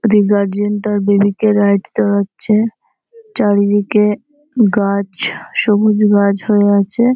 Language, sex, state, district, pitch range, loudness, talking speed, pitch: Bengali, female, West Bengal, North 24 Parganas, 200-215 Hz, -14 LUFS, 110 wpm, 205 Hz